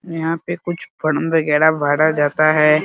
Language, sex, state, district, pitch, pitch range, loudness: Hindi, male, Bihar, Muzaffarpur, 155 Hz, 150-165 Hz, -17 LUFS